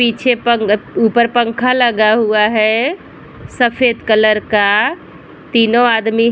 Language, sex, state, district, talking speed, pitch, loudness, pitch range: Hindi, female, Bihar, Vaishali, 135 wpm, 230 Hz, -13 LUFS, 215-240 Hz